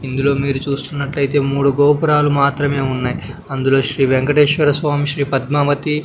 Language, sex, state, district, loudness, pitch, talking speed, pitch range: Telugu, male, Andhra Pradesh, Sri Satya Sai, -16 LUFS, 140 Hz, 130 wpm, 135-145 Hz